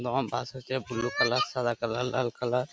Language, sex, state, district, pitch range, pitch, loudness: Bengali, male, West Bengal, Paschim Medinipur, 120-130 Hz, 125 Hz, -29 LUFS